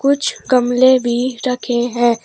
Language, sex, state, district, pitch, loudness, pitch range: Hindi, female, Uttar Pradesh, Shamli, 250 Hz, -15 LUFS, 240-255 Hz